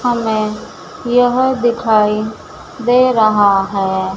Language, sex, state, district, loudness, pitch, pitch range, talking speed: Hindi, female, Madhya Pradesh, Dhar, -14 LUFS, 220 Hz, 210-245 Hz, 85 wpm